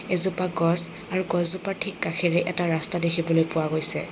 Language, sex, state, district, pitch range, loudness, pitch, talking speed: Assamese, female, Assam, Kamrup Metropolitan, 165-185 Hz, -18 LUFS, 175 Hz, 160 wpm